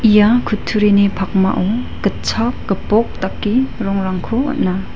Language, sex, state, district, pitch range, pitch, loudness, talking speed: Garo, female, Meghalaya, West Garo Hills, 195-230 Hz, 210 Hz, -16 LUFS, 95 wpm